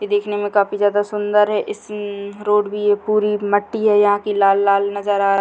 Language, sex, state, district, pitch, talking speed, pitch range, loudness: Hindi, female, Bihar, Sitamarhi, 205 Hz, 235 wpm, 205-210 Hz, -18 LUFS